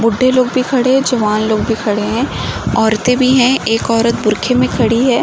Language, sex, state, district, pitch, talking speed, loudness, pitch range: Hindi, female, Uttar Pradesh, Gorakhpur, 235 Hz, 220 wpm, -13 LUFS, 220-255 Hz